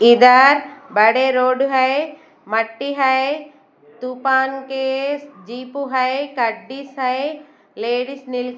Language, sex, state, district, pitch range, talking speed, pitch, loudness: Hindi, female, Bihar, West Champaran, 250-275 Hz, 110 wpm, 265 Hz, -17 LUFS